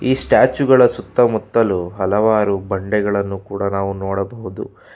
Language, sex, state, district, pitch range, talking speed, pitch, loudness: Kannada, male, Karnataka, Bangalore, 100-120 Hz, 120 wpm, 105 Hz, -17 LUFS